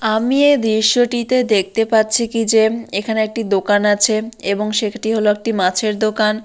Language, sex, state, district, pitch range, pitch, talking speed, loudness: Bengali, female, West Bengal, Dakshin Dinajpur, 210-230 Hz, 220 Hz, 160 wpm, -16 LUFS